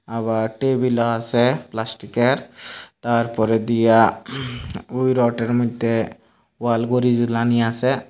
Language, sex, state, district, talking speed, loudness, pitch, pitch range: Bengali, male, Tripura, Unakoti, 110 wpm, -20 LUFS, 115 Hz, 115-125 Hz